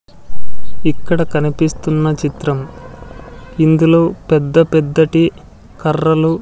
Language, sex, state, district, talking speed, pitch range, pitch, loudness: Telugu, male, Andhra Pradesh, Sri Satya Sai, 55 wpm, 155-165 Hz, 160 Hz, -14 LUFS